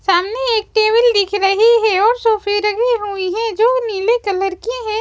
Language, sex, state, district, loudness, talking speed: Hindi, female, Chhattisgarh, Raipur, -15 LUFS, 190 wpm